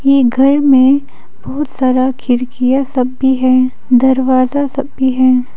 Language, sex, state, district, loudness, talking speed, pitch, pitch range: Hindi, female, Arunachal Pradesh, Papum Pare, -12 LUFS, 140 wpm, 260 Hz, 255-275 Hz